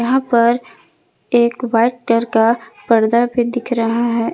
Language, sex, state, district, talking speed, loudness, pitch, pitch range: Hindi, female, Jharkhand, Palamu, 150 wpm, -16 LUFS, 235 Hz, 230-245 Hz